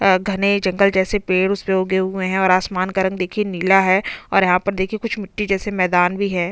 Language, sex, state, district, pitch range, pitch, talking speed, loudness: Hindi, female, Chhattisgarh, Bastar, 185-200 Hz, 190 Hz, 240 wpm, -18 LUFS